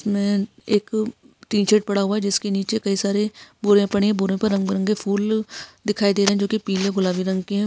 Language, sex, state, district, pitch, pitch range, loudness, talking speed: Hindi, female, Maharashtra, Aurangabad, 205 Hz, 200-215 Hz, -21 LUFS, 235 wpm